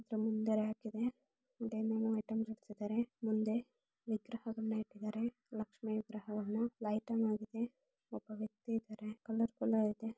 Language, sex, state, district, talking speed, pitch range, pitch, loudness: Kannada, female, Karnataka, Shimoga, 125 wpm, 215-230 Hz, 220 Hz, -40 LUFS